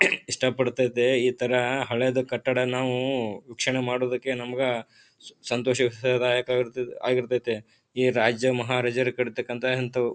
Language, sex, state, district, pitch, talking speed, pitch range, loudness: Kannada, male, Karnataka, Bijapur, 125 Hz, 105 wpm, 120-130 Hz, -25 LUFS